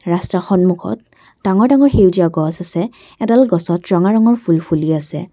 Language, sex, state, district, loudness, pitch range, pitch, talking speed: Assamese, female, Assam, Kamrup Metropolitan, -14 LUFS, 170-210 Hz, 180 Hz, 155 wpm